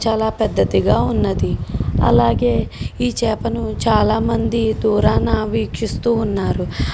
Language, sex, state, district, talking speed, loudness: Telugu, female, Telangana, Karimnagar, 105 wpm, -18 LUFS